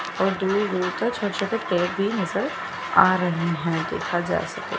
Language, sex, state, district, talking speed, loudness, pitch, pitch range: Hindi, female, Chandigarh, Chandigarh, 185 wpm, -23 LUFS, 195 Hz, 175-215 Hz